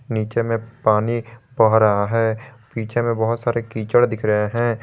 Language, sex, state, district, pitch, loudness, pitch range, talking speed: Hindi, male, Jharkhand, Garhwa, 115 Hz, -20 LUFS, 110-120 Hz, 175 wpm